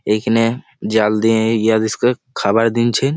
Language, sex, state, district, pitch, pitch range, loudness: Bengali, male, West Bengal, Malda, 115 Hz, 110-120 Hz, -16 LUFS